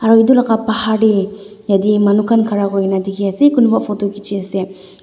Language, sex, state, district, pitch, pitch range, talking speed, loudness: Nagamese, female, Nagaland, Dimapur, 205 Hz, 195-220 Hz, 200 wpm, -14 LUFS